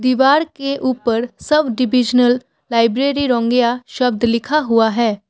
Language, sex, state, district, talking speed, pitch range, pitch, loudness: Hindi, female, Assam, Kamrup Metropolitan, 125 wpm, 235-270 Hz, 250 Hz, -16 LUFS